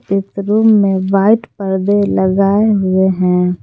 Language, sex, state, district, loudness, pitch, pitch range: Hindi, female, Jharkhand, Palamu, -13 LUFS, 195 Hz, 190-205 Hz